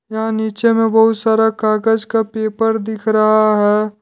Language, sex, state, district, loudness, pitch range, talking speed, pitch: Hindi, male, Jharkhand, Deoghar, -15 LUFS, 215-225 Hz, 165 wpm, 220 Hz